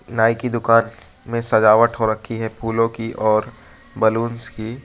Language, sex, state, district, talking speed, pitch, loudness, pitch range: Hindi, male, Arunachal Pradesh, Lower Dibang Valley, 160 wpm, 115 Hz, -19 LUFS, 110-115 Hz